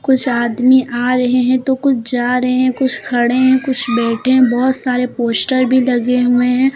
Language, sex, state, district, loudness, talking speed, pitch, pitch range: Hindi, female, Uttar Pradesh, Lucknow, -14 LUFS, 205 wpm, 250 Hz, 245-260 Hz